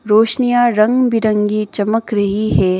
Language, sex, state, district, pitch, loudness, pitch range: Hindi, female, Sikkim, Gangtok, 215 Hz, -15 LUFS, 210-230 Hz